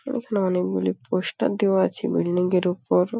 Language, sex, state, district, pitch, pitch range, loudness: Bengali, female, West Bengal, Paschim Medinipur, 185 Hz, 180-205 Hz, -23 LUFS